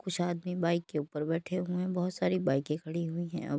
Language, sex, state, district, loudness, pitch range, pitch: Hindi, female, Uttar Pradesh, Deoria, -33 LUFS, 160-180 Hz, 170 Hz